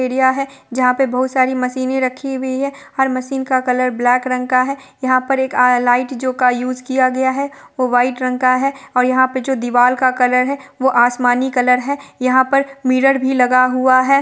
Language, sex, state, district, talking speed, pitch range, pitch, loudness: Hindi, female, Chhattisgarh, Bilaspur, 225 wpm, 250-265 Hz, 255 Hz, -16 LUFS